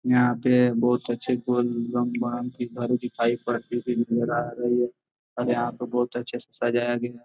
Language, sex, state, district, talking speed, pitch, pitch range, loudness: Hindi, male, Bihar, Gopalganj, 130 wpm, 120 Hz, 120-125 Hz, -25 LUFS